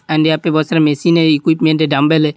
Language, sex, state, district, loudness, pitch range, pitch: Hindi, male, Uttar Pradesh, Hamirpur, -13 LUFS, 155-160 Hz, 155 Hz